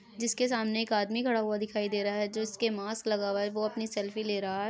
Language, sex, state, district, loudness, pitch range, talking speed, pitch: Hindi, female, Rajasthan, Nagaur, -31 LUFS, 205-225 Hz, 270 wpm, 215 Hz